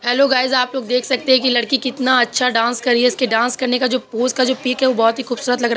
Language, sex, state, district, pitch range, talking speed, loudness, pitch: Hindi, male, Uttar Pradesh, Hamirpur, 240-260 Hz, 320 wpm, -16 LUFS, 250 Hz